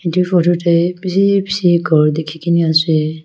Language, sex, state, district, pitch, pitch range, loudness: Nagamese, female, Nagaland, Kohima, 170 Hz, 160-180 Hz, -14 LUFS